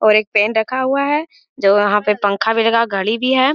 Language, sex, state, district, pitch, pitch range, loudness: Hindi, male, Bihar, Jamui, 220 Hz, 210-260 Hz, -16 LUFS